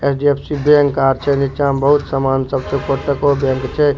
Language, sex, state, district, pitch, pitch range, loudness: Maithili, male, Bihar, Supaul, 140 Hz, 135-145 Hz, -16 LUFS